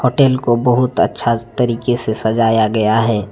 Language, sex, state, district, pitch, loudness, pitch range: Hindi, male, Jharkhand, Deoghar, 115 Hz, -15 LUFS, 110-125 Hz